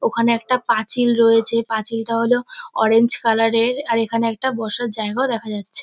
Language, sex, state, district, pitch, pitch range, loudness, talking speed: Bengali, female, West Bengal, North 24 Parganas, 230 Hz, 225-240 Hz, -18 LUFS, 165 wpm